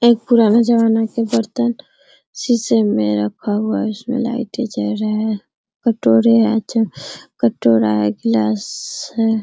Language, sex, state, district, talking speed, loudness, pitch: Hindi, female, Bihar, Araria, 140 wpm, -17 LUFS, 220 Hz